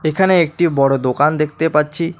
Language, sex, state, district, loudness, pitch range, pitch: Bengali, male, West Bengal, Alipurduar, -16 LUFS, 150-170 Hz, 155 Hz